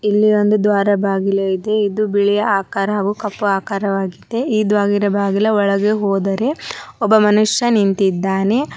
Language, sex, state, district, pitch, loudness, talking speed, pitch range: Kannada, male, Karnataka, Dharwad, 205 Hz, -16 LUFS, 130 wpm, 195-215 Hz